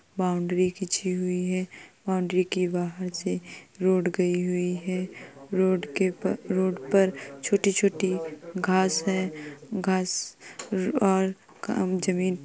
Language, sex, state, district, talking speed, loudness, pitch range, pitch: Hindi, female, Uttar Pradesh, Jalaun, 110 wpm, -27 LUFS, 180-190 Hz, 185 Hz